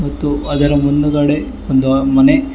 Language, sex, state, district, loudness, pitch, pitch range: Kannada, male, Karnataka, Bangalore, -14 LUFS, 145 Hz, 145-150 Hz